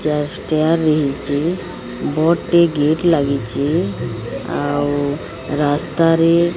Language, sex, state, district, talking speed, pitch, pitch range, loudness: Odia, female, Odisha, Sambalpur, 100 wpm, 150 Hz, 145-165 Hz, -18 LUFS